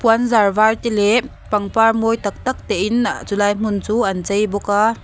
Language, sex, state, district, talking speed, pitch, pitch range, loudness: Mizo, female, Mizoram, Aizawl, 225 wpm, 215 Hz, 205-230 Hz, -17 LUFS